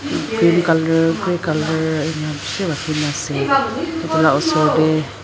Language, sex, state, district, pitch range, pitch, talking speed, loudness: Nagamese, female, Nagaland, Dimapur, 155-170 Hz, 160 Hz, 140 wpm, -18 LUFS